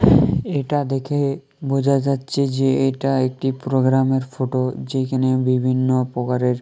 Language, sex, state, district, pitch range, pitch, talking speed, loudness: Bengali, male, Jharkhand, Jamtara, 130-135 Hz, 130 Hz, 110 wpm, -20 LUFS